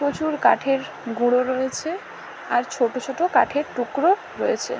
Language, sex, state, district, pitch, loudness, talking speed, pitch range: Bengali, female, West Bengal, Paschim Medinipur, 270 Hz, -22 LUFS, 135 wpm, 250-310 Hz